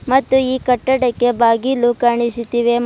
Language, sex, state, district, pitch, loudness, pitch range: Kannada, female, Karnataka, Bidar, 245 Hz, -16 LUFS, 235-260 Hz